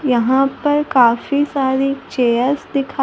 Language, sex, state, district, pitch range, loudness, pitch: Hindi, female, Maharashtra, Gondia, 250-280 Hz, -16 LUFS, 270 Hz